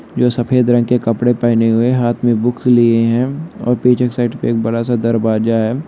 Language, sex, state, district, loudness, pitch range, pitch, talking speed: Hindi, male, Jharkhand, Jamtara, -14 LUFS, 115-125 Hz, 120 Hz, 235 wpm